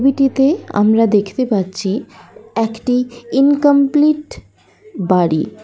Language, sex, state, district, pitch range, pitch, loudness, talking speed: Bengali, female, West Bengal, Kolkata, 205-280 Hz, 245 Hz, -15 LUFS, 85 wpm